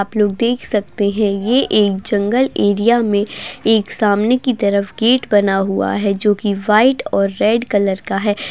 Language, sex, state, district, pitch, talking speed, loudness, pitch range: Hindi, female, Bihar, Begusarai, 210 Hz, 200 wpm, -16 LUFS, 200-230 Hz